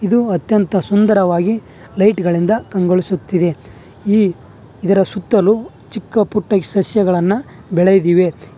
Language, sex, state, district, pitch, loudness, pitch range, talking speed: Kannada, male, Karnataka, Bangalore, 195 Hz, -15 LUFS, 180-210 Hz, 90 wpm